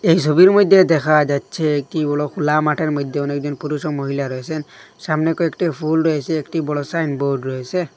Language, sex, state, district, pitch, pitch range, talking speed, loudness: Bengali, male, Assam, Hailakandi, 150 Hz, 145-160 Hz, 180 wpm, -18 LUFS